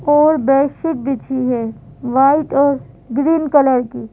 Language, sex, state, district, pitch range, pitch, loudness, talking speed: Hindi, female, Madhya Pradesh, Bhopal, 255-295 Hz, 275 Hz, -16 LUFS, 145 wpm